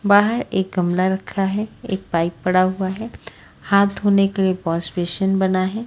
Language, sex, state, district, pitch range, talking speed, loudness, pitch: Hindi, female, Haryana, Rohtak, 185-200 Hz, 175 wpm, -20 LUFS, 190 Hz